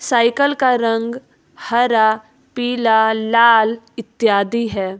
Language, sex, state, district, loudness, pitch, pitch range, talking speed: Hindi, female, Jharkhand, Ranchi, -16 LUFS, 230 Hz, 220-245 Hz, 95 wpm